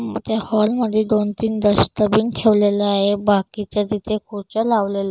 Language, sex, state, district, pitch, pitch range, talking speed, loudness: Marathi, female, Maharashtra, Solapur, 210 Hz, 205-220 Hz, 165 wpm, -18 LUFS